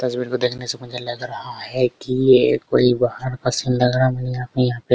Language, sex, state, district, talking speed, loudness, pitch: Hindi, male, Bihar, Araria, 280 wpm, -20 LUFS, 125 Hz